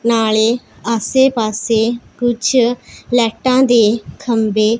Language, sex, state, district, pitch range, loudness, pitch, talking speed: Punjabi, female, Punjab, Pathankot, 220-245 Hz, -15 LUFS, 235 Hz, 85 wpm